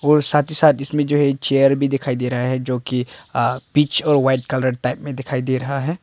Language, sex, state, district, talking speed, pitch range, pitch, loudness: Hindi, male, Arunachal Pradesh, Papum Pare, 260 wpm, 130-145 Hz, 135 Hz, -18 LUFS